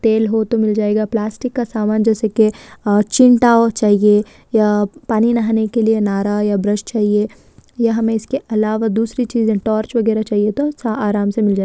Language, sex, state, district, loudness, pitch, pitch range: Hindi, female, Andhra Pradesh, Krishna, -16 LUFS, 220 Hz, 210-230 Hz